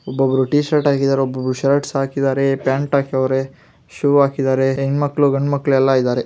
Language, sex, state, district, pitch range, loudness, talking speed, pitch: Kannada, female, Karnataka, Gulbarga, 135-140 Hz, -17 LUFS, 170 wpm, 135 Hz